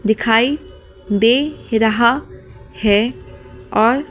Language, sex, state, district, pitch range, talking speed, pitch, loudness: Hindi, female, Delhi, New Delhi, 205-240 Hz, 75 wpm, 225 Hz, -16 LUFS